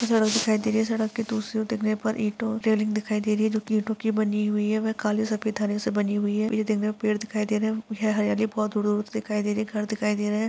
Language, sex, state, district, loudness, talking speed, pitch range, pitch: Hindi, male, Jharkhand, Jamtara, -26 LUFS, 295 wpm, 210-220 Hz, 215 Hz